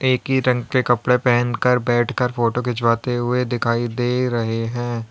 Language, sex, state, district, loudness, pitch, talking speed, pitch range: Hindi, male, Uttar Pradesh, Lalitpur, -20 LUFS, 120 Hz, 165 wpm, 120-125 Hz